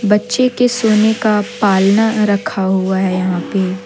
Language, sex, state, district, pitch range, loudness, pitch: Hindi, female, Jharkhand, Deoghar, 190-220 Hz, -14 LUFS, 210 Hz